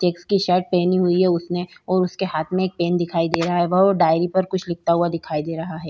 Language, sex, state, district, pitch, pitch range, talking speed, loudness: Hindi, female, Goa, North and South Goa, 175 Hz, 170-185 Hz, 275 wpm, -20 LUFS